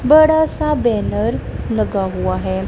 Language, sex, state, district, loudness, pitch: Hindi, female, Punjab, Kapurthala, -17 LUFS, 230 Hz